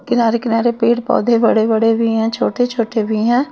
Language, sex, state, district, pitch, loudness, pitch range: Hindi, female, Chhattisgarh, Raipur, 230 Hz, -15 LUFS, 225-240 Hz